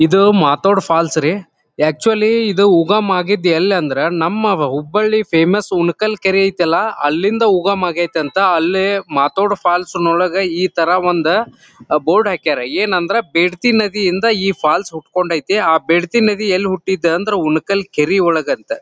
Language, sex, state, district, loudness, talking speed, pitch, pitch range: Kannada, male, Karnataka, Dharwad, -15 LUFS, 145 wpm, 185 Hz, 165-200 Hz